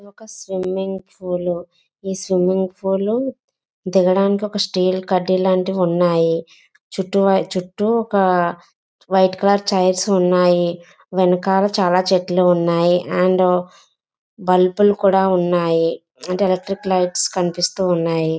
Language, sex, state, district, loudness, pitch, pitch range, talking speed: Telugu, female, Andhra Pradesh, Visakhapatnam, -18 LUFS, 185 Hz, 180-195 Hz, 110 wpm